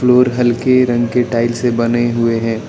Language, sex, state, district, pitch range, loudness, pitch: Hindi, male, Arunachal Pradesh, Lower Dibang Valley, 115-125 Hz, -14 LUFS, 120 Hz